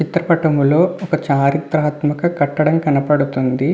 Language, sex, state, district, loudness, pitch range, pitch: Telugu, male, Andhra Pradesh, Visakhapatnam, -16 LUFS, 140-165 Hz, 150 Hz